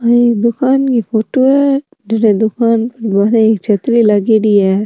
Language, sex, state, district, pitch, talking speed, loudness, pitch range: Rajasthani, female, Rajasthan, Nagaur, 225 Hz, 175 wpm, -12 LUFS, 215-240 Hz